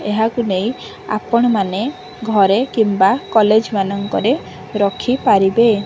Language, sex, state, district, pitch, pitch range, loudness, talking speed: Odia, female, Odisha, Khordha, 215 Hz, 200-235 Hz, -16 LUFS, 90 wpm